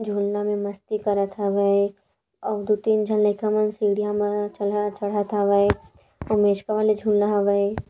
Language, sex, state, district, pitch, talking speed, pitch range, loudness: Chhattisgarhi, female, Chhattisgarh, Rajnandgaon, 205 Hz, 160 wpm, 200-210 Hz, -23 LUFS